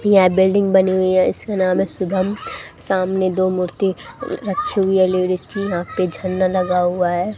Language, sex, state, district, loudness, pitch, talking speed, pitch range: Hindi, female, Haryana, Rohtak, -18 LUFS, 185 Hz, 185 wpm, 185-195 Hz